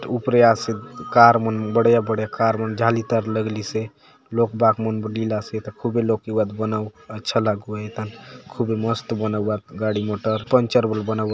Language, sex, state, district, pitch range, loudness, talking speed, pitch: Halbi, male, Chhattisgarh, Bastar, 110-115 Hz, -21 LUFS, 180 wpm, 110 Hz